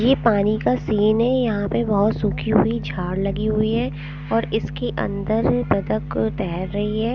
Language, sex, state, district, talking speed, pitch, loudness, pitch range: Hindi, female, Punjab, Pathankot, 185 wpm, 205 Hz, -21 LUFS, 150-220 Hz